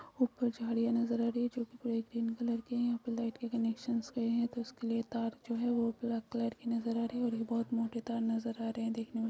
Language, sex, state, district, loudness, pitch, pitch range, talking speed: Hindi, female, Chhattisgarh, Jashpur, -36 LUFS, 235 Hz, 230-235 Hz, 290 wpm